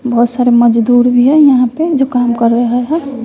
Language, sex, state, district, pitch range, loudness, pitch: Hindi, female, Bihar, West Champaran, 240-265 Hz, -10 LUFS, 245 Hz